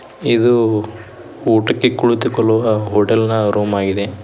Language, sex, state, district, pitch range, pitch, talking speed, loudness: Kannada, male, Karnataka, Koppal, 105-115 Hz, 110 Hz, 100 wpm, -15 LUFS